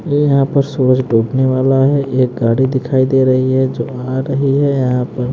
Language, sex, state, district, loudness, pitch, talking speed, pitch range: Hindi, male, Haryana, Jhajjar, -14 LUFS, 130 Hz, 225 wpm, 130-135 Hz